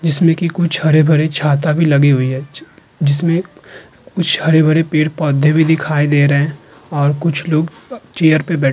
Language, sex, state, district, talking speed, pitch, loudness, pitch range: Hindi, female, Uttar Pradesh, Hamirpur, 170 wpm, 155 Hz, -14 LUFS, 145-165 Hz